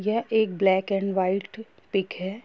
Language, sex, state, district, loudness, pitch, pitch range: Hindi, female, Bihar, Gopalganj, -25 LUFS, 195 Hz, 190-220 Hz